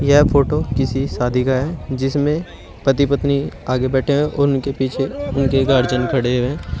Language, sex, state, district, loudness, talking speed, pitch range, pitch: Hindi, male, Uttar Pradesh, Shamli, -18 LUFS, 160 wpm, 130-140 Hz, 135 Hz